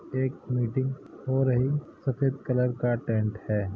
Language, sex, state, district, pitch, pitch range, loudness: Hindi, male, Uttar Pradesh, Hamirpur, 130 Hz, 120-135 Hz, -28 LUFS